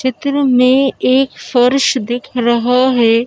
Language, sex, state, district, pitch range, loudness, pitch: Hindi, female, Madhya Pradesh, Bhopal, 245-260 Hz, -13 LUFS, 255 Hz